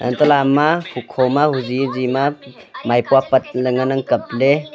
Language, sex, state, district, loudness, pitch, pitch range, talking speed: Wancho, male, Arunachal Pradesh, Longding, -17 LUFS, 135 Hz, 125-140 Hz, 140 wpm